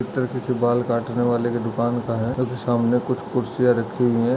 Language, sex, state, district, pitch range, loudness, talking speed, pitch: Hindi, male, Uttar Pradesh, Jyotiba Phule Nagar, 120-125 Hz, -22 LUFS, 245 wpm, 120 Hz